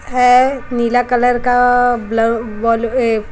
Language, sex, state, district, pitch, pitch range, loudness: Hindi, female, Chhattisgarh, Raipur, 245 Hz, 230-245 Hz, -14 LUFS